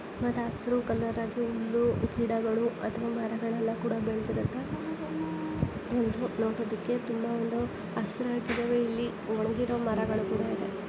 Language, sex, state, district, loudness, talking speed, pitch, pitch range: Kannada, female, Karnataka, Dharwad, -31 LUFS, 110 wpm, 230 Hz, 220-235 Hz